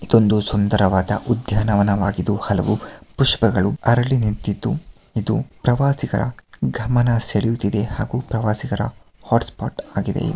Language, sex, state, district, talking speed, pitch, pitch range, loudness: Kannada, male, Karnataka, Mysore, 100 wpm, 105 Hz, 100-120 Hz, -19 LUFS